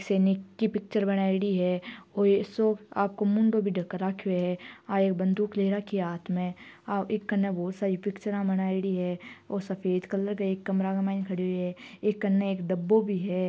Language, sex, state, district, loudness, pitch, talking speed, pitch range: Marwari, female, Rajasthan, Churu, -28 LUFS, 195 Hz, 195 wpm, 185-205 Hz